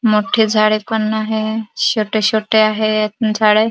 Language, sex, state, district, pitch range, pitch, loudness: Marathi, female, Maharashtra, Dhule, 215-220 Hz, 215 Hz, -15 LUFS